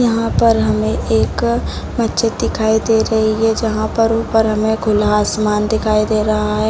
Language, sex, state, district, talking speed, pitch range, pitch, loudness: Hindi, female, Bihar, Sitamarhi, 190 wpm, 140-225 Hz, 215 Hz, -16 LUFS